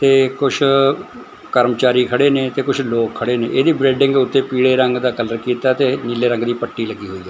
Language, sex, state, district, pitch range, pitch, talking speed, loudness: Punjabi, male, Punjab, Fazilka, 120-135 Hz, 125 Hz, 215 wpm, -16 LUFS